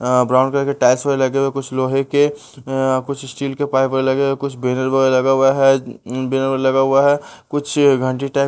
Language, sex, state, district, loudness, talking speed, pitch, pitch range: Hindi, male, Bihar, West Champaran, -17 LUFS, 240 wpm, 135 Hz, 130-140 Hz